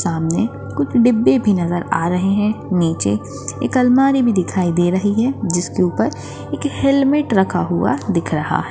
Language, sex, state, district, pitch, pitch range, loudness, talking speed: Hindi, female, Maharashtra, Chandrapur, 185 Hz, 170-235 Hz, -17 LUFS, 170 wpm